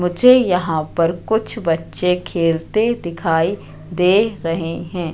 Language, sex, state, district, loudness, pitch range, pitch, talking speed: Hindi, female, Madhya Pradesh, Katni, -18 LUFS, 165-205 Hz, 175 Hz, 115 wpm